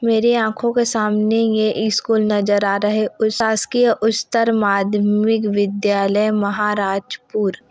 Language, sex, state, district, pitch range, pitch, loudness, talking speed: Hindi, female, Chhattisgarh, Kabirdham, 205-225 Hz, 215 Hz, -18 LUFS, 130 wpm